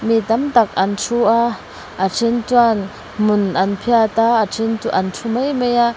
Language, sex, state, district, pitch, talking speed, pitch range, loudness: Mizo, female, Mizoram, Aizawl, 225 Hz, 210 wpm, 205-235 Hz, -17 LUFS